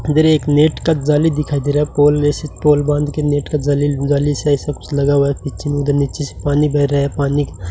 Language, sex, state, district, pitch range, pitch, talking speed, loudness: Hindi, male, Rajasthan, Bikaner, 140-150 Hz, 145 Hz, 225 wpm, -16 LUFS